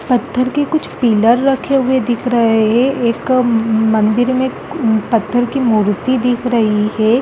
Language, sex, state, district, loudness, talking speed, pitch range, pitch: Hindi, female, Chhattisgarh, Rajnandgaon, -14 LUFS, 160 wpm, 225-255 Hz, 240 Hz